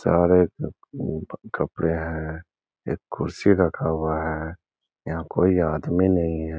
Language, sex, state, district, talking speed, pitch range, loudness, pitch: Hindi, male, Bihar, Gaya, 155 wpm, 80-90 Hz, -24 LUFS, 80 Hz